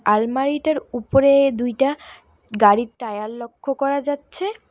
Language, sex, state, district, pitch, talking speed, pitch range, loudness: Bengali, female, West Bengal, Alipurduar, 270 Hz, 115 wpm, 235-285 Hz, -20 LUFS